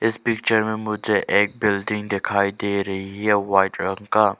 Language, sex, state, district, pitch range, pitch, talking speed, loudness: Hindi, male, Arunachal Pradesh, Lower Dibang Valley, 100-110 Hz, 105 Hz, 175 wpm, -21 LUFS